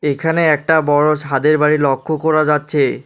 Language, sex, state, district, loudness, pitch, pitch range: Bengali, male, West Bengal, Alipurduar, -15 LUFS, 150 Hz, 145-155 Hz